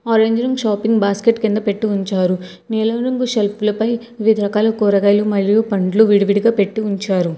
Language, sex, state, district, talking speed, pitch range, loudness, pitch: Telugu, female, Telangana, Hyderabad, 170 wpm, 200-225 Hz, -16 LUFS, 210 Hz